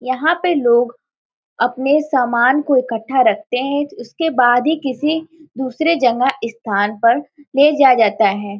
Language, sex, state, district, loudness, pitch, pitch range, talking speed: Hindi, female, Uttar Pradesh, Varanasi, -16 LUFS, 260 Hz, 235-295 Hz, 145 wpm